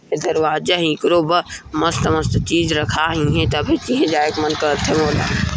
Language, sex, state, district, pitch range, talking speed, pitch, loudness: Chhattisgarhi, male, Chhattisgarh, Kabirdham, 150-170 Hz, 140 wpm, 155 Hz, -18 LUFS